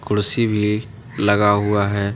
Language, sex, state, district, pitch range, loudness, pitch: Hindi, male, Jharkhand, Deoghar, 100-110 Hz, -18 LUFS, 105 Hz